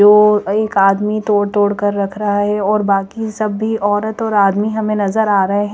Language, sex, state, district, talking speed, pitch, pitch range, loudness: Hindi, female, Chandigarh, Chandigarh, 220 wpm, 205 Hz, 205-215 Hz, -15 LUFS